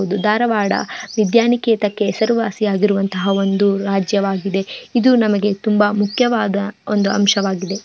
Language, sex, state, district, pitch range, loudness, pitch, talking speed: Kannada, female, Karnataka, Dharwad, 195-215 Hz, -17 LUFS, 205 Hz, 90 wpm